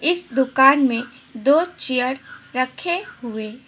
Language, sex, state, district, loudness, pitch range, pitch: Hindi, female, West Bengal, Alipurduar, -19 LUFS, 245-295 Hz, 260 Hz